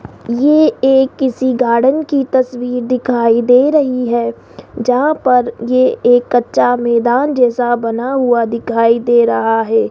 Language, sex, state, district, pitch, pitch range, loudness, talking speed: Hindi, female, Rajasthan, Jaipur, 245 Hz, 235-260 Hz, -13 LUFS, 140 wpm